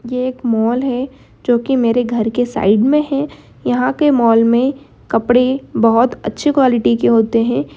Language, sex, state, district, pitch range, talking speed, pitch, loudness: Hindi, female, Bihar, Darbhanga, 230-260 Hz, 180 wpm, 245 Hz, -15 LUFS